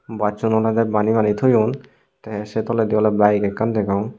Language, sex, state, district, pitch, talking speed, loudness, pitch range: Chakma, male, Tripura, Unakoti, 110 Hz, 170 wpm, -19 LUFS, 105-110 Hz